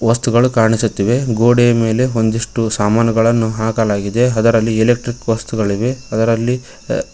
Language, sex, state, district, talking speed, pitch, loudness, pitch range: Kannada, male, Karnataka, Koppal, 95 wpm, 115 Hz, -15 LUFS, 110-120 Hz